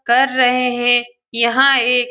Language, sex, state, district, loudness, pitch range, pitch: Hindi, female, Bihar, Lakhisarai, -14 LUFS, 245-255 Hz, 245 Hz